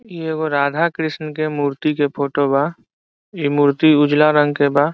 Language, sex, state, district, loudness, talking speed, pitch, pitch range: Bhojpuri, male, Bihar, Saran, -17 LUFS, 180 wpm, 150 Hz, 145-155 Hz